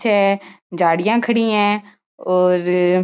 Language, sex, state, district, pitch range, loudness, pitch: Marwari, female, Rajasthan, Churu, 180-210 Hz, -17 LUFS, 195 Hz